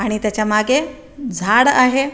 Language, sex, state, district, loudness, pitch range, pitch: Marathi, female, Maharashtra, Aurangabad, -15 LUFS, 215-270 Hz, 250 Hz